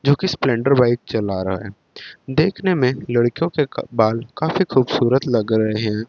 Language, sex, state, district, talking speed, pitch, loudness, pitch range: Hindi, male, Chandigarh, Chandigarh, 180 wpm, 125 Hz, -19 LUFS, 110-140 Hz